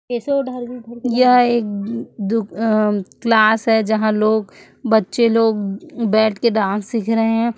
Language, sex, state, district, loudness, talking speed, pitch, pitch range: Hindi, female, Chhattisgarh, Raipur, -17 LUFS, 120 wpm, 225 Hz, 215-235 Hz